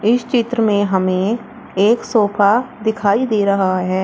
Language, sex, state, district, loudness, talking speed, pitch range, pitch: Hindi, female, Uttar Pradesh, Shamli, -16 LUFS, 150 wpm, 195-230 Hz, 210 Hz